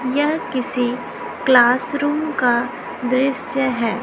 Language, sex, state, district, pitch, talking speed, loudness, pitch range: Hindi, female, Chhattisgarh, Raipur, 255 Hz, 90 wpm, -19 LUFS, 245-275 Hz